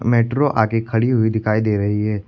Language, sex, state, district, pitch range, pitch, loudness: Hindi, male, Uttar Pradesh, Lucknow, 105-115 Hz, 110 Hz, -18 LUFS